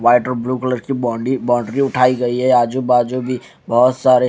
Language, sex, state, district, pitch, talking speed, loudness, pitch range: Hindi, male, Haryana, Charkhi Dadri, 125 Hz, 210 wpm, -17 LUFS, 120-130 Hz